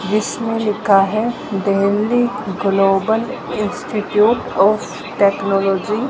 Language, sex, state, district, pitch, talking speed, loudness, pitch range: Hindi, female, Haryana, Jhajjar, 210 Hz, 90 wpm, -17 LUFS, 195-220 Hz